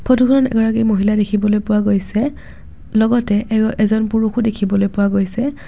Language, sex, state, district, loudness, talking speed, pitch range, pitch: Assamese, female, Assam, Kamrup Metropolitan, -16 LUFS, 125 wpm, 210-225 Hz, 215 Hz